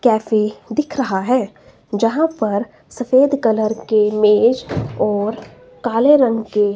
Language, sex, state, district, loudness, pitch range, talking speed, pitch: Hindi, female, Himachal Pradesh, Shimla, -17 LUFS, 210-255 Hz, 125 wpm, 225 Hz